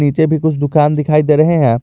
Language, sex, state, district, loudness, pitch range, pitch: Hindi, male, Jharkhand, Garhwa, -13 LUFS, 145-160 Hz, 150 Hz